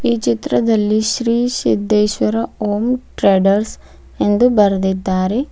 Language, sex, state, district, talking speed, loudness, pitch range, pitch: Kannada, female, Karnataka, Bidar, 85 wpm, -16 LUFS, 195-230 Hz, 210 Hz